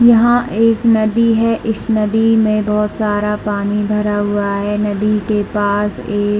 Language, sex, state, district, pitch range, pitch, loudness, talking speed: Hindi, female, Chhattisgarh, Bilaspur, 205-225 Hz, 210 Hz, -15 LUFS, 160 wpm